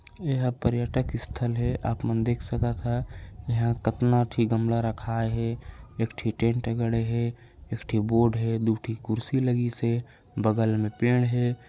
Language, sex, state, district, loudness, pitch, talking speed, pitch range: Chhattisgarhi, male, Chhattisgarh, Raigarh, -27 LUFS, 115 Hz, 175 wpm, 115-120 Hz